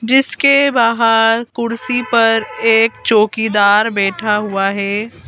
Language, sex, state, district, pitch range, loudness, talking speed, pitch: Hindi, female, Madhya Pradesh, Bhopal, 210-235 Hz, -14 LUFS, 100 wpm, 225 Hz